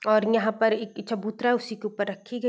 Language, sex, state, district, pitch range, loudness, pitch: Hindi, female, Bihar, Gopalganj, 215-230 Hz, -26 LUFS, 220 Hz